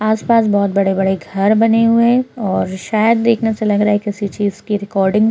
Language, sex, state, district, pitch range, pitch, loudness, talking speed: Hindi, female, Chhattisgarh, Korba, 200-225 Hz, 210 Hz, -15 LUFS, 215 wpm